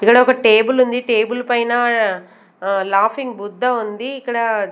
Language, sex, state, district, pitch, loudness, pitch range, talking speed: Telugu, female, Andhra Pradesh, Sri Satya Sai, 235 Hz, -16 LUFS, 210-245 Hz, 140 wpm